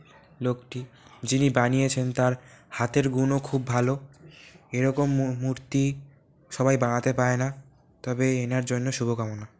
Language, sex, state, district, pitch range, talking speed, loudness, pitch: Bengali, male, West Bengal, Kolkata, 125-140 Hz, 125 wpm, -26 LUFS, 130 Hz